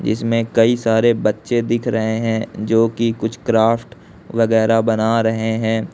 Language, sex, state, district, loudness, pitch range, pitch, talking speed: Hindi, male, Uttar Pradesh, Lucknow, -17 LUFS, 110-115 Hz, 115 Hz, 150 wpm